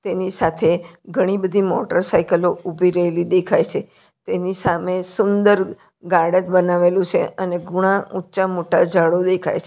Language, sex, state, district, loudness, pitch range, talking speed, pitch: Gujarati, female, Gujarat, Valsad, -18 LUFS, 175-190 Hz, 135 wpm, 180 Hz